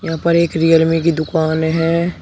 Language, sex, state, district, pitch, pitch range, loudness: Hindi, male, Uttar Pradesh, Shamli, 165 Hz, 160-170 Hz, -15 LUFS